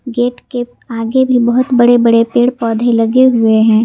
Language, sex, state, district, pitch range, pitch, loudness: Hindi, female, Jharkhand, Garhwa, 230-250 Hz, 240 Hz, -12 LUFS